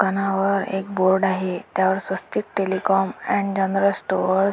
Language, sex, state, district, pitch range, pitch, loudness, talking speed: Marathi, female, Maharashtra, Dhule, 190-195 Hz, 195 Hz, -22 LUFS, 145 wpm